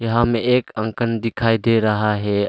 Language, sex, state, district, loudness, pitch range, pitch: Hindi, male, Arunachal Pradesh, Longding, -19 LUFS, 105-115 Hz, 115 Hz